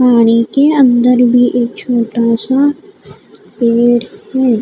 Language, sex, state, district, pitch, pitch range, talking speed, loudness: Hindi, female, Odisha, Khordha, 245 Hz, 235-265 Hz, 115 wpm, -11 LUFS